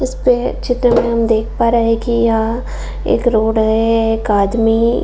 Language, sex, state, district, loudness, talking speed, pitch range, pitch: Hindi, female, Bihar, Saran, -15 LUFS, 190 wpm, 220-235 Hz, 230 Hz